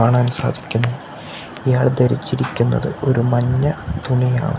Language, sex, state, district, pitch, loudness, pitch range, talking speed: Malayalam, male, Kerala, Kasaragod, 125 Hz, -18 LUFS, 120-130 Hz, 90 wpm